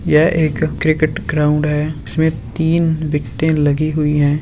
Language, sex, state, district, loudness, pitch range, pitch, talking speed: Hindi, male, Bihar, Purnia, -16 LUFS, 150-160 Hz, 155 Hz, 150 wpm